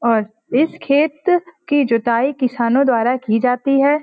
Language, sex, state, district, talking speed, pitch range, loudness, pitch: Hindi, female, Uttar Pradesh, Varanasi, 150 wpm, 235-290 Hz, -17 LUFS, 260 Hz